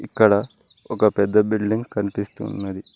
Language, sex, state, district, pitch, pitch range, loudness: Telugu, male, Telangana, Mahabubabad, 105 Hz, 100-110 Hz, -21 LUFS